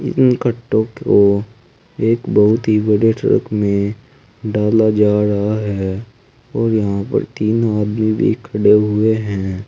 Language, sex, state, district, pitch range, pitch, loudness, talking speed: Hindi, male, Uttar Pradesh, Saharanpur, 105-115 Hz, 105 Hz, -16 LUFS, 135 wpm